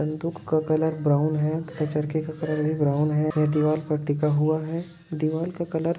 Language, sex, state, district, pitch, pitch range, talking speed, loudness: Hindi, male, Goa, North and South Goa, 155 Hz, 150-160 Hz, 220 wpm, -25 LUFS